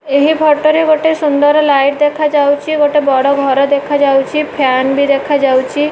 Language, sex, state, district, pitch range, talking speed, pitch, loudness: Odia, female, Odisha, Malkangiri, 275-300 Hz, 140 wpm, 290 Hz, -11 LUFS